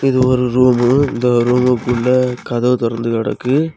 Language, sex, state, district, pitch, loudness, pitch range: Tamil, male, Tamil Nadu, Kanyakumari, 125 Hz, -15 LUFS, 120-130 Hz